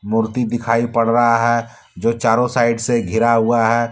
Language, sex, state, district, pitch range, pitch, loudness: Hindi, male, Jharkhand, Deoghar, 115-120 Hz, 115 Hz, -17 LUFS